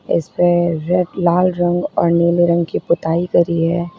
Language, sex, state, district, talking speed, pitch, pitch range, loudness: Hindi, female, Uttar Pradesh, Lalitpur, 150 wpm, 175 Hz, 170-175 Hz, -16 LUFS